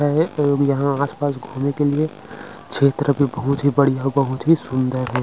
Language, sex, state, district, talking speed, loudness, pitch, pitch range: Chhattisgarhi, male, Chhattisgarh, Rajnandgaon, 170 wpm, -19 LUFS, 140 Hz, 135-145 Hz